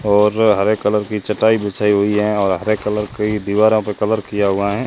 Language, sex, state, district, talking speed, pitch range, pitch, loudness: Hindi, male, Rajasthan, Jaisalmer, 220 wpm, 105-110 Hz, 105 Hz, -16 LUFS